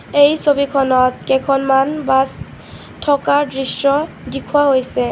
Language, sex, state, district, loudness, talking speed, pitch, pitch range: Assamese, female, Assam, Kamrup Metropolitan, -15 LUFS, 95 wpm, 275 Hz, 265-285 Hz